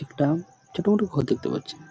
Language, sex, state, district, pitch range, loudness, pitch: Bengali, male, West Bengal, Purulia, 145-180 Hz, -26 LUFS, 155 Hz